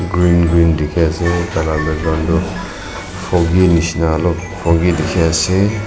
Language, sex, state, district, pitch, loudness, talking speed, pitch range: Nagamese, male, Nagaland, Dimapur, 85 Hz, -15 LUFS, 145 wpm, 80-90 Hz